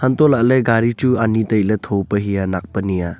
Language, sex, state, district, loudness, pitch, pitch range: Wancho, male, Arunachal Pradesh, Longding, -17 LUFS, 110 Hz, 100-120 Hz